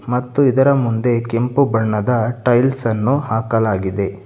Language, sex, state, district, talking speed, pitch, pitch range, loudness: Kannada, male, Karnataka, Bangalore, 115 wpm, 120 Hz, 110-130 Hz, -17 LUFS